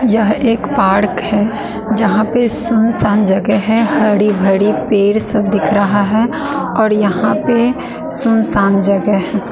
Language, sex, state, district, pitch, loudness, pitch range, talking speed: Hindi, female, Bihar, West Champaran, 210 Hz, -13 LUFS, 205-225 Hz, 140 wpm